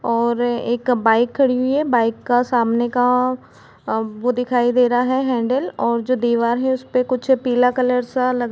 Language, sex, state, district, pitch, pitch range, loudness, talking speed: Hindi, female, Chhattisgarh, Kabirdham, 245 Hz, 240-255 Hz, -18 LUFS, 175 wpm